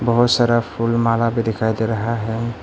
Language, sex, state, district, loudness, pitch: Hindi, male, Arunachal Pradesh, Papum Pare, -19 LUFS, 115 Hz